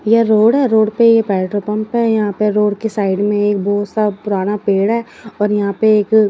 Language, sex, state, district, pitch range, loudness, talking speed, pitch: Hindi, female, Odisha, Nuapada, 205-220 Hz, -15 LUFS, 220 wpm, 210 Hz